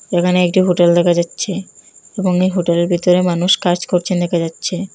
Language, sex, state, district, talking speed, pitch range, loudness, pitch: Bengali, female, Assam, Hailakandi, 155 wpm, 175-185 Hz, -15 LUFS, 180 Hz